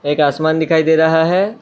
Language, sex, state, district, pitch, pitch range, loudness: Hindi, male, Assam, Kamrup Metropolitan, 160 Hz, 155-165 Hz, -14 LUFS